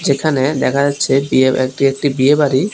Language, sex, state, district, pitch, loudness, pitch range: Bengali, male, Tripura, West Tripura, 140 Hz, -14 LUFS, 130-145 Hz